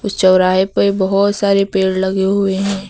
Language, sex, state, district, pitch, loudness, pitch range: Hindi, female, Uttar Pradesh, Lucknow, 195 Hz, -14 LUFS, 190-200 Hz